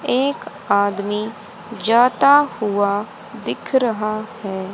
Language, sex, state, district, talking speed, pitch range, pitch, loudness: Hindi, female, Haryana, Rohtak, 90 wpm, 205-245 Hz, 215 Hz, -19 LUFS